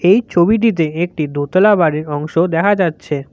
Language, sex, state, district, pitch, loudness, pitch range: Bengali, male, West Bengal, Cooch Behar, 170 Hz, -15 LUFS, 155-195 Hz